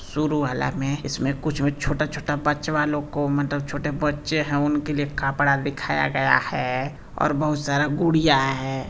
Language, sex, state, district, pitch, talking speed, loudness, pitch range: Hindi, male, Bihar, Saran, 145 Hz, 170 wpm, -23 LUFS, 140-150 Hz